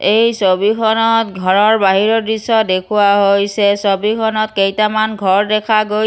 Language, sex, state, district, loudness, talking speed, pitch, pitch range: Assamese, female, Assam, Kamrup Metropolitan, -13 LUFS, 120 wpm, 215 Hz, 200-220 Hz